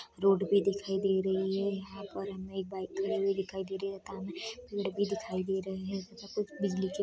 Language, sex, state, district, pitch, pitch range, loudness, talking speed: Hindi, female, Bihar, Saharsa, 195 Hz, 190-200 Hz, -34 LUFS, 255 wpm